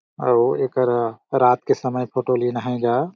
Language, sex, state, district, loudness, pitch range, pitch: Surgujia, male, Chhattisgarh, Sarguja, -20 LUFS, 120-130 Hz, 125 Hz